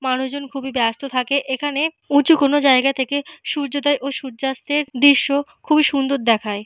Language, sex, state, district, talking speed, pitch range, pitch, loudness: Bengali, female, Jharkhand, Jamtara, 145 wpm, 265-285 Hz, 275 Hz, -18 LUFS